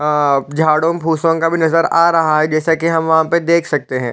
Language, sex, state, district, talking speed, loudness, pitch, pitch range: Hindi, male, Chhattisgarh, Raigarh, 230 wpm, -14 LUFS, 160 Hz, 155-165 Hz